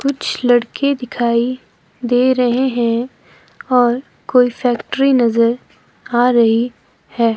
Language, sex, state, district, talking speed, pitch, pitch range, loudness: Hindi, female, Himachal Pradesh, Shimla, 105 wpm, 245 Hz, 235-255 Hz, -16 LUFS